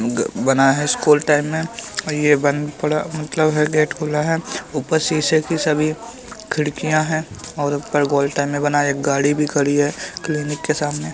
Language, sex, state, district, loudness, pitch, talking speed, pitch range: Bhojpuri, male, Uttar Pradesh, Gorakhpur, -19 LUFS, 150 Hz, 190 wpm, 145-155 Hz